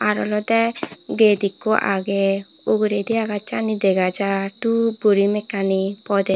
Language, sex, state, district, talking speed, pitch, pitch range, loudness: Chakma, female, Tripura, Unakoti, 125 wpm, 205 Hz, 195-220 Hz, -20 LUFS